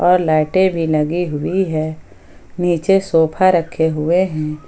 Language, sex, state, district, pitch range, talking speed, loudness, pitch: Hindi, female, Jharkhand, Ranchi, 155-180 Hz, 140 wpm, -16 LUFS, 165 Hz